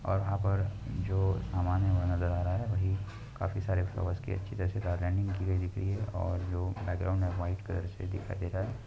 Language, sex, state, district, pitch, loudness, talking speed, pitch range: Hindi, male, Uttar Pradesh, Muzaffarnagar, 95 Hz, -33 LUFS, 205 wpm, 90-100 Hz